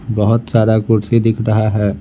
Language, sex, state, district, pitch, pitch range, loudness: Hindi, male, Bihar, Patna, 110 Hz, 110-115 Hz, -14 LUFS